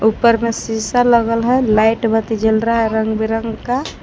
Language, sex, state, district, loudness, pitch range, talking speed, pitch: Hindi, female, Jharkhand, Palamu, -16 LUFS, 220-230 Hz, 195 wpm, 225 Hz